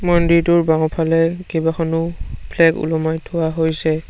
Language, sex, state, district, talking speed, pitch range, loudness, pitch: Assamese, male, Assam, Sonitpur, 100 wpm, 160-170 Hz, -17 LUFS, 165 Hz